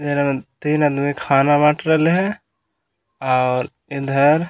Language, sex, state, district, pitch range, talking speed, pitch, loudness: Magahi, male, Bihar, Gaya, 135-150 Hz, 120 wpm, 145 Hz, -18 LUFS